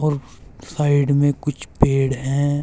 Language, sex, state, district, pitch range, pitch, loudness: Hindi, male, Uttar Pradesh, Saharanpur, 135-145 Hz, 140 Hz, -20 LUFS